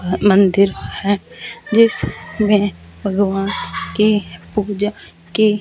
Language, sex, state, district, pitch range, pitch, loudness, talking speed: Hindi, female, Punjab, Fazilka, 195-210 Hz, 200 Hz, -17 LUFS, 95 wpm